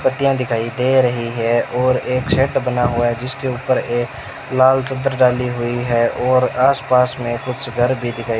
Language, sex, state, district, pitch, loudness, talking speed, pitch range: Hindi, male, Rajasthan, Bikaner, 125 Hz, -17 LUFS, 200 wpm, 120-130 Hz